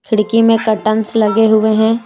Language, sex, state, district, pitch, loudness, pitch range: Hindi, female, Jharkhand, Deoghar, 220 Hz, -13 LUFS, 215-225 Hz